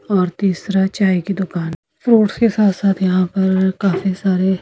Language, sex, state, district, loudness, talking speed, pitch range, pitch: Hindi, female, Himachal Pradesh, Shimla, -17 LUFS, 155 wpm, 185-200 Hz, 190 Hz